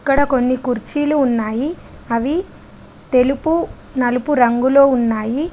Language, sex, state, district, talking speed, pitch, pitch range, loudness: Telugu, female, Telangana, Adilabad, 100 wpm, 260 Hz, 245-290 Hz, -17 LUFS